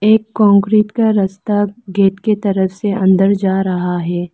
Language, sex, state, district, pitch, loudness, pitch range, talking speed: Hindi, female, Arunachal Pradesh, Lower Dibang Valley, 200 Hz, -14 LUFS, 190-210 Hz, 165 wpm